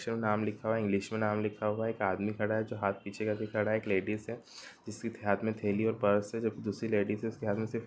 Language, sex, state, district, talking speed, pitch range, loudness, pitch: Hindi, male, Bihar, Gopalganj, 335 wpm, 105-110 Hz, -33 LUFS, 105 Hz